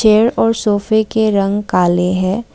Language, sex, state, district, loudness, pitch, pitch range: Hindi, female, Assam, Kamrup Metropolitan, -14 LUFS, 210 Hz, 185-220 Hz